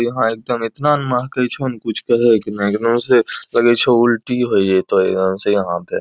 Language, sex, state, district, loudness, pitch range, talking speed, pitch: Angika, male, Bihar, Bhagalpur, -16 LUFS, 105-125 Hz, 210 wpm, 120 Hz